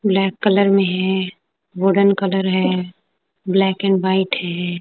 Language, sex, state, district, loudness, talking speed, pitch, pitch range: Hindi, female, Punjab, Kapurthala, -18 LUFS, 135 wpm, 190 Hz, 185-195 Hz